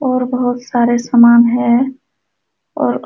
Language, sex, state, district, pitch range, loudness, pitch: Hindi, female, Uttar Pradesh, Jalaun, 240-255 Hz, -13 LUFS, 245 Hz